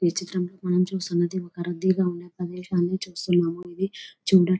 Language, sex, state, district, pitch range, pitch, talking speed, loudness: Telugu, female, Telangana, Nalgonda, 175-185 Hz, 180 Hz, 170 wpm, -26 LUFS